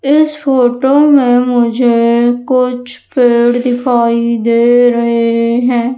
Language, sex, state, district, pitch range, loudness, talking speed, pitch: Hindi, female, Madhya Pradesh, Umaria, 235-250 Hz, -11 LUFS, 100 wpm, 245 Hz